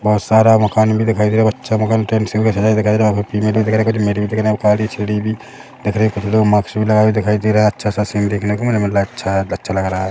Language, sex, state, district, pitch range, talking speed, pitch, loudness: Hindi, male, Chhattisgarh, Rajnandgaon, 105-110 Hz, 70 wpm, 105 Hz, -15 LUFS